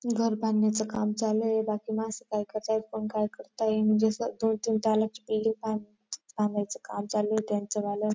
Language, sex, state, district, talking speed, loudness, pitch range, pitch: Marathi, female, Maharashtra, Dhule, 160 wpm, -29 LUFS, 210-220 Hz, 215 Hz